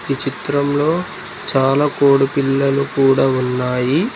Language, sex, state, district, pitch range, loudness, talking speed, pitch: Telugu, male, Telangana, Mahabubabad, 135-140 Hz, -16 LUFS, 100 wpm, 135 Hz